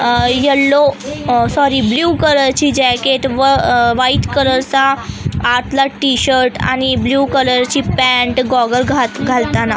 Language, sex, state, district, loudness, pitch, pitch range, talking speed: Marathi, female, Maharashtra, Aurangabad, -13 LUFS, 260 Hz, 250-275 Hz, 140 wpm